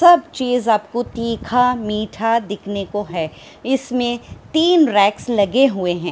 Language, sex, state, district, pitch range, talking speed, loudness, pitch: Hindi, female, Bihar, Purnia, 205-250 Hz, 135 wpm, -18 LUFS, 230 Hz